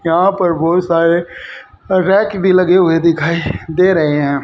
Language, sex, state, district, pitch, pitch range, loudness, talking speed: Hindi, male, Haryana, Rohtak, 170 Hz, 165-185 Hz, -13 LUFS, 160 wpm